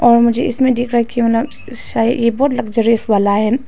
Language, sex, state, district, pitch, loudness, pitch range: Hindi, female, Arunachal Pradesh, Papum Pare, 235 Hz, -15 LUFS, 230-245 Hz